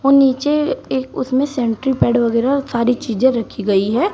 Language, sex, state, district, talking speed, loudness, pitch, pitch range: Hindi, female, Uttar Pradesh, Shamli, 160 wpm, -17 LUFS, 260 Hz, 235-275 Hz